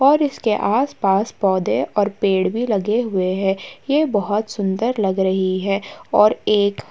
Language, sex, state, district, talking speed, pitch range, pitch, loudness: Hindi, female, Uttar Pradesh, Muzaffarnagar, 165 wpm, 195-225 Hz, 205 Hz, -19 LUFS